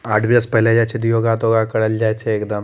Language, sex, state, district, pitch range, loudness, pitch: Maithili, male, Bihar, Madhepura, 110-115 Hz, -17 LUFS, 115 Hz